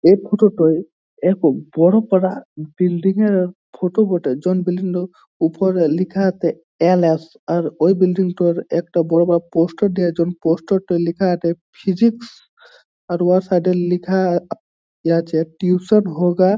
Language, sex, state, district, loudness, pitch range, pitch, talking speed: Bengali, male, West Bengal, Jhargram, -18 LUFS, 170-190 Hz, 180 Hz, 150 wpm